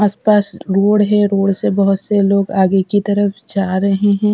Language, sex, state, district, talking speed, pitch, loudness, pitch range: Hindi, female, Bihar, Katihar, 205 wpm, 200 Hz, -15 LUFS, 195-205 Hz